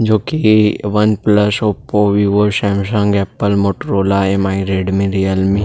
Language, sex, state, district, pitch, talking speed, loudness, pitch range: Chhattisgarhi, male, Chhattisgarh, Rajnandgaon, 100 Hz, 160 wpm, -14 LUFS, 100-105 Hz